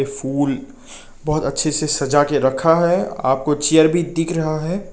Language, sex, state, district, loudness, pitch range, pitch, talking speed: Hindi, male, Nagaland, Kohima, -18 LUFS, 140-165 Hz, 155 Hz, 170 wpm